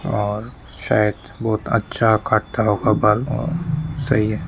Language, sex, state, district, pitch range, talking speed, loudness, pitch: Hindi, male, West Bengal, Jalpaiguri, 105-135 Hz, 120 wpm, -20 LUFS, 110 Hz